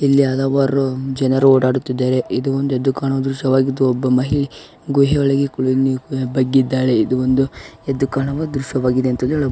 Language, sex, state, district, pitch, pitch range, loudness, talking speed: Kannada, male, Karnataka, Raichur, 135 Hz, 130-135 Hz, -17 LUFS, 125 wpm